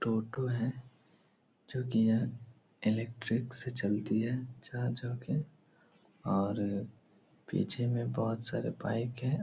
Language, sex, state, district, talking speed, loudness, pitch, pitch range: Hindi, male, Bihar, Supaul, 115 wpm, -35 LUFS, 120 Hz, 115-130 Hz